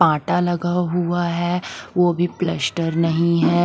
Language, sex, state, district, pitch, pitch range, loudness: Hindi, female, Bihar, West Champaran, 175 Hz, 170-175 Hz, -20 LUFS